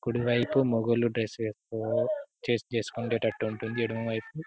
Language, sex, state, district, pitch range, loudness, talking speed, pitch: Telugu, male, Telangana, Karimnagar, 110-120 Hz, -29 LUFS, 135 wpm, 115 Hz